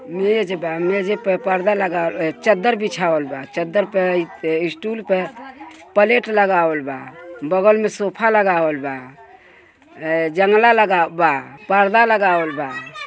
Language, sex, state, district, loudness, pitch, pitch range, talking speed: Bhojpuri, male, Uttar Pradesh, Gorakhpur, -18 LUFS, 185 Hz, 165-210 Hz, 130 wpm